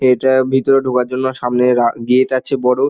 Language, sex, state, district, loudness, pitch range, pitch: Bengali, male, West Bengal, Dakshin Dinajpur, -15 LUFS, 125-130 Hz, 130 Hz